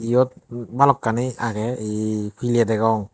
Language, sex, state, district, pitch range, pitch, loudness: Chakma, male, Tripura, Dhalai, 110-120 Hz, 115 Hz, -21 LUFS